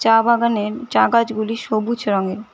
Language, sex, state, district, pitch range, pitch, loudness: Bengali, female, West Bengal, Cooch Behar, 215-235 Hz, 225 Hz, -18 LUFS